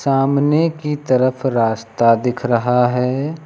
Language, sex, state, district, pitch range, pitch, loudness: Hindi, male, Uttar Pradesh, Lucknow, 120-145 Hz, 130 Hz, -17 LUFS